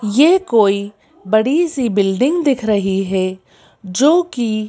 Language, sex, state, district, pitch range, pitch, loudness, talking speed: Hindi, female, Madhya Pradesh, Bhopal, 200-280 Hz, 220 Hz, -15 LUFS, 130 wpm